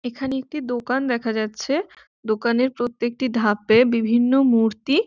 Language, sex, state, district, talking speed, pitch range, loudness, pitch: Bengali, female, West Bengal, Jhargram, 120 wpm, 225-265 Hz, -21 LUFS, 240 Hz